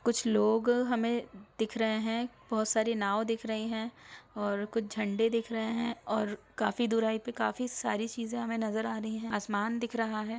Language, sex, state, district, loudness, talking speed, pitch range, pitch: Hindi, female, Chhattisgarh, Raigarh, -32 LUFS, 195 wpm, 220-235 Hz, 225 Hz